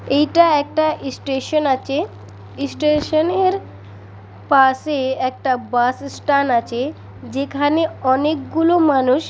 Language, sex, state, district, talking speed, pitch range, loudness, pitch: Bengali, female, West Bengal, Purulia, 95 wpm, 250-305 Hz, -18 LUFS, 275 Hz